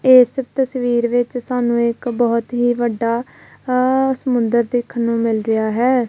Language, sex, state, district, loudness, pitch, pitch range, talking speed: Punjabi, female, Punjab, Kapurthala, -18 LUFS, 240 Hz, 235-250 Hz, 150 wpm